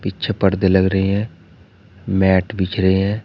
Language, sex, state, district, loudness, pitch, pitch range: Hindi, male, Uttar Pradesh, Shamli, -17 LUFS, 95 Hz, 95-100 Hz